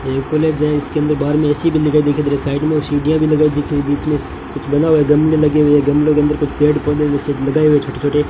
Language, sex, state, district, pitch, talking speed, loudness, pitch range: Hindi, male, Rajasthan, Bikaner, 150 Hz, 290 wpm, -15 LUFS, 145-150 Hz